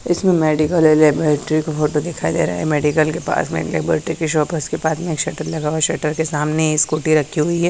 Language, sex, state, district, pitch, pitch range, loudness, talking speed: Hindi, female, Haryana, Charkhi Dadri, 155 Hz, 155-160 Hz, -18 LUFS, 250 wpm